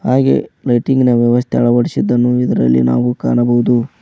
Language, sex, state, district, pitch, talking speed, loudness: Kannada, male, Karnataka, Koppal, 120 Hz, 120 wpm, -13 LUFS